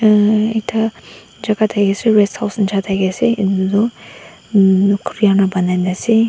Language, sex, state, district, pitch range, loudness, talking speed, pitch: Nagamese, female, Nagaland, Dimapur, 195-220 Hz, -15 LUFS, 180 wpm, 205 Hz